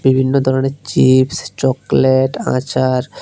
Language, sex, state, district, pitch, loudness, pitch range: Bengali, male, Tripura, West Tripura, 130 Hz, -15 LUFS, 130-135 Hz